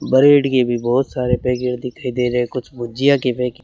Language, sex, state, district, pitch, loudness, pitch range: Hindi, male, Rajasthan, Bikaner, 125 Hz, -17 LUFS, 125-130 Hz